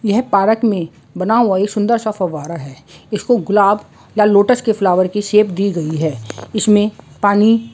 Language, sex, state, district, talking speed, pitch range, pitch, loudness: Hindi, female, West Bengal, Jhargram, 170 wpm, 170-215 Hz, 205 Hz, -15 LUFS